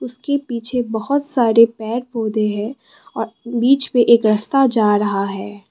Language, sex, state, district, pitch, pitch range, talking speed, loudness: Hindi, female, Assam, Kamrup Metropolitan, 235 Hz, 215-255 Hz, 160 wpm, -17 LUFS